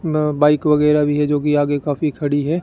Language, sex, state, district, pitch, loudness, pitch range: Hindi, male, Rajasthan, Bikaner, 150 Hz, -17 LUFS, 145-150 Hz